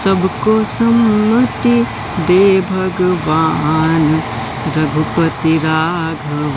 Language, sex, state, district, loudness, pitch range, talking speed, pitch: Hindi, male, Madhya Pradesh, Katni, -14 LUFS, 155-195 Hz, 55 wpm, 165 Hz